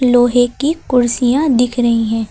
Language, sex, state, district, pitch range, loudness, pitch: Hindi, female, Uttar Pradesh, Lucknow, 240-255 Hz, -14 LUFS, 245 Hz